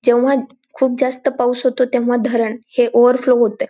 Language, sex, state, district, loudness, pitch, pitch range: Marathi, female, Maharashtra, Dhule, -16 LUFS, 250 Hz, 245-265 Hz